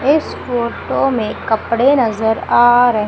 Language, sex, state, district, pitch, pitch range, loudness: Hindi, female, Madhya Pradesh, Umaria, 240 Hz, 220-250 Hz, -15 LUFS